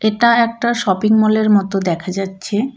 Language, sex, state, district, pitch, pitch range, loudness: Bengali, female, West Bengal, Cooch Behar, 215 Hz, 195-230 Hz, -16 LUFS